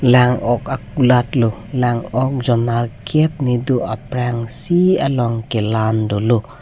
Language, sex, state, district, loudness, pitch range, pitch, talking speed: Karbi, male, Assam, Karbi Anglong, -17 LUFS, 115-130 Hz, 120 Hz, 125 wpm